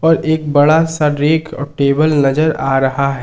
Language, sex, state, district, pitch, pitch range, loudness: Hindi, male, Jharkhand, Ranchi, 150 Hz, 140-155 Hz, -14 LUFS